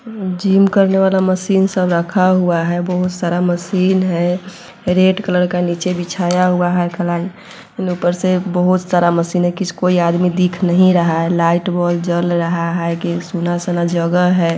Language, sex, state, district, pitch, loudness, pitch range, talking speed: Hindi, female, Bihar, Sitamarhi, 180 Hz, -15 LUFS, 175-185 Hz, 170 wpm